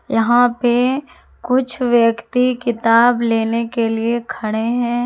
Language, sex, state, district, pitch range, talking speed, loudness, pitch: Hindi, female, Jharkhand, Ranchi, 230-245 Hz, 120 wpm, -17 LUFS, 240 Hz